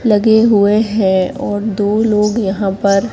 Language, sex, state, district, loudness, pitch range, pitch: Hindi, female, Madhya Pradesh, Katni, -13 LUFS, 200-220 Hz, 210 Hz